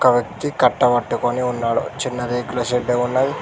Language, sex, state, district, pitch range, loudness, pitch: Telugu, male, Telangana, Mahabubabad, 120-125 Hz, -20 LUFS, 125 Hz